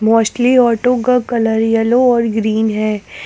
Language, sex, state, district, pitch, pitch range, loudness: Hindi, female, Jharkhand, Ranchi, 225 Hz, 220-245 Hz, -14 LUFS